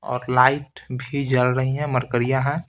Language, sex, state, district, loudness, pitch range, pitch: Hindi, male, Bihar, Patna, -21 LUFS, 125-140 Hz, 130 Hz